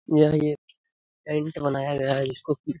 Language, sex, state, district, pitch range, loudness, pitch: Hindi, male, Bihar, Jamui, 140-155 Hz, -25 LUFS, 150 Hz